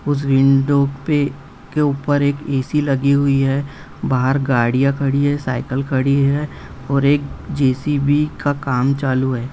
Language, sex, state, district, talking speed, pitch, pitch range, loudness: Hindi, male, Bihar, Saran, 145 wpm, 140 Hz, 135-145 Hz, -18 LUFS